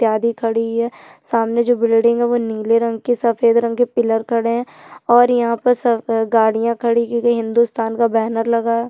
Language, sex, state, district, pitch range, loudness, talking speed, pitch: Hindi, female, Chhattisgarh, Jashpur, 230-235 Hz, -17 LUFS, 200 wpm, 235 Hz